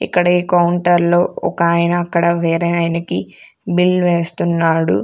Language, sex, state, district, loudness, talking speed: Telugu, female, Andhra Pradesh, Sri Satya Sai, -15 LUFS, 120 wpm